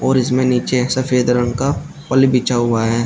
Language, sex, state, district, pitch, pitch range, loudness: Hindi, male, Uttar Pradesh, Shamli, 125 Hz, 120-130 Hz, -16 LUFS